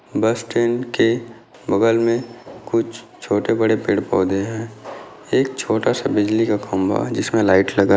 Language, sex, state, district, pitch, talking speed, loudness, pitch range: Hindi, male, Maharashtra, Chandrapur, 110 Hz, 160 wpm, -19 LUFS, 100-115 Hz